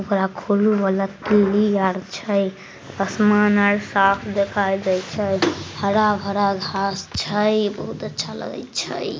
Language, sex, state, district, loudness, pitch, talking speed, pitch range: Magahi, female, Bihar, Samastipur, -20 LUFS, 200 Hz, 125 wpm, 195-210 Hz